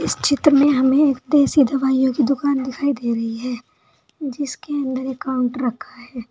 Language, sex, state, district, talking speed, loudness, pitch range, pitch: Hindi, female, Uttar Pradesh, Saharanpur, 170 wpm, -19 LUFS, 250-285 Hz, 265 Hz